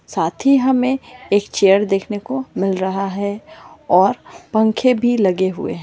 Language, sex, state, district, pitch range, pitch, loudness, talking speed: Marwari, female, Rajasthan, Churu, 195-255 Hz, 205 Hz, -17 LUFS, 165 wpm